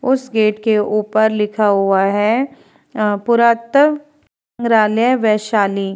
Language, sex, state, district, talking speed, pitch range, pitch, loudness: Hindi, female, Bihar, Vaishali, 110 wpm, 210-235 Hz, 220 Hz, -15 LUFS